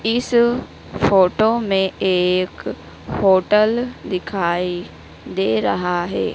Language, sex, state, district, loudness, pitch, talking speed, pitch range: Hindi, female, Madhya Pradesh, Dhar, -19 LUFS, 190 Hz, 85 wpm, 180-220 Hz